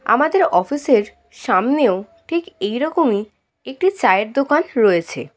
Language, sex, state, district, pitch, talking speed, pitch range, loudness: Bengali, female, West Bengal, Kolkata, 275 Hz, 125 wpm, 210-330 Hz, -18 LUFS